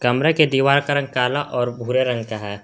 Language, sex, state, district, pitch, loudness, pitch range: Hindi, male, Jharkhand, Garhwa, 125 Hz, -19 LUFS, 120-140 Hz